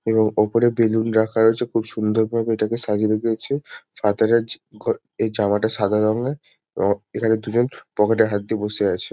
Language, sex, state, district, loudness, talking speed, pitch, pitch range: Bengali, male, West Bengal, Jalpaiguri, -21 LUFS, 170 wpm, 110 Hz, 105-115 Hz